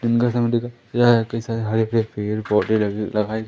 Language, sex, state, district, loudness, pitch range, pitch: Hindi, male, Madhya Pradesh, Umaria, -21 LUFS, 110-120 Hz, 115 Hz